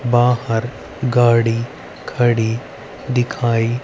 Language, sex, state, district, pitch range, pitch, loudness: Hindi, female, Haryana, Rohtak, 115-120 Hz, 120 Hz, -18 LUFS